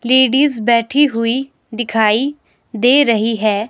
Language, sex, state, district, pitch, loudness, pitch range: Hindi, female, Himachal Pradesh, Shimla, 240 Hz, -14 LUFS, 225-265 Hz